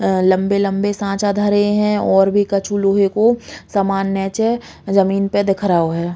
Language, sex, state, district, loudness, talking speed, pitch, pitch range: Bundeli, female, Uttar Pradesh, Hamirpur, -16 LUFS, 175 wpm, 200 Hz, 195-205 Hz